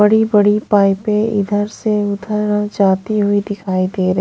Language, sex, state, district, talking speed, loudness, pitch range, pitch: Hindi, female, Punjab, Pathankot, 145 wpm, -16 LUFS, 200-210 Hz, 205 Hz